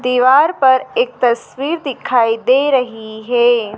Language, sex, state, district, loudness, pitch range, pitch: Hindi, female, Madhya Pradesh, Dhar, -14 LUFS, 235-275 Hz, 250 Hz